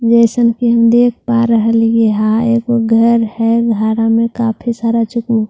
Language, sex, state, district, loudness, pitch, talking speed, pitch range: Hindi, female, Bihar, Katihar, -12 LUFS, 230 Hz, 65 wpm, 225-235 Hz